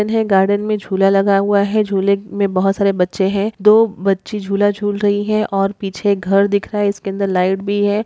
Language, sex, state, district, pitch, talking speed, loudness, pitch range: Hindi, female, Bihar, Darbhanga, 200 Hz, 225 wpm, -16 LUFS, 195-205 Hz